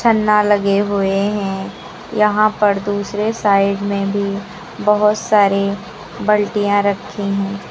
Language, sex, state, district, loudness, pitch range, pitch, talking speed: Hindi, female, Uttar Pradesh, Lucknow, -16 LUFS, 200-210 Hz, 205 Hz, 110 wpm